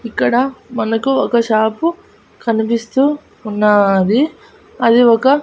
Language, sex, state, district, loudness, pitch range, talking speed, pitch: Telugu, female, Andhra Pradesh, Annamaya, -15 LUFS, 220-270 Hz, 90 wpm, 235 Hz